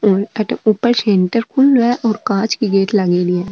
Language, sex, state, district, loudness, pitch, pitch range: Marwari, female, Rajasthan, Nagaur, -15 LUFS, 215 Hz, 195-235 Hz